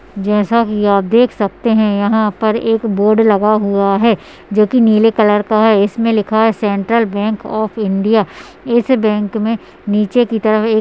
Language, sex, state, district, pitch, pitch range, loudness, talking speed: Hindi, female, Uttarakhand, Tehri Garhwal, 215 Hz, 210-225 Hz, -13 LUFS, 200 wpm